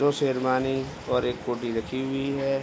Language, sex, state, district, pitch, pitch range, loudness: Hindi, male, Bihar, Gopalganj, 130 Hz, 125-135 Hz, -27 LUFS